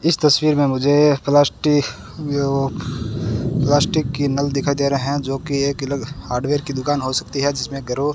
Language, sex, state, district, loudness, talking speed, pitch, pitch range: Hindi, male, Rajasthan, Bikaner, -19 LUFS, 190 wpm, 140 Hz, 135-145 Hz